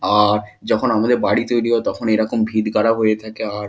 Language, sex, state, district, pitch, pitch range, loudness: Bengali, male, West Bengal, Kolkata, 110 Hz, 105-115 Hz, -18 LUFS